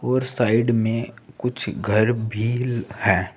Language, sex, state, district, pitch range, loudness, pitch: Hindi, male, Uttar Pradesh, Saharanpur, 110-125 Hz, -22 LUFS, 115 Hz